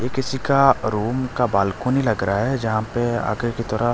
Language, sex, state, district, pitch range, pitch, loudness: Hindi, male, Delhi, New Delhi, 110-130 Hz, 120 Hz, -21 LUFS